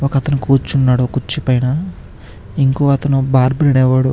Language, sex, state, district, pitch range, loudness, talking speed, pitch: Telugu, male, Andhra Pradesh, Chittoor, 130-140 Hz, -15 LUFS, 145 wpm, 135 Hz